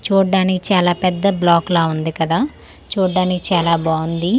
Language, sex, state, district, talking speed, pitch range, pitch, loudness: Telugu, female, Andhra Pradesh, Manyam, 150 wpm, 170-190 Hz, 180 Hz, -17 LUFS